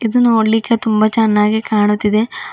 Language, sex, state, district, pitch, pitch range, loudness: Kannada, female, Karnataka, Bidar, 220 Hz, 215-230 Hz, -14 LUFS